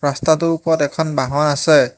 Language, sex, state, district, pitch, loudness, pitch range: Assamese, male, Assam, Hailakandi, 155 Hz, -17 LUFS, 145-160 Hz